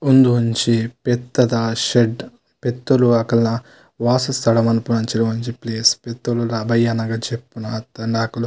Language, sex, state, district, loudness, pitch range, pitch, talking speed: Tulu, male, Karnataka, Dakshina Kannada, -19 LUFS, 115-120 Hz, 115 Hz, 105 wpm